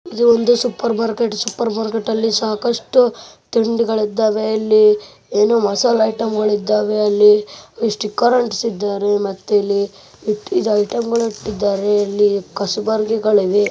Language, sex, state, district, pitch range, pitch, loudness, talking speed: Kannada, male, Karnataka, Bellary, 205-230 Hz, 215 Hz, -17 LUFS, 115 wpm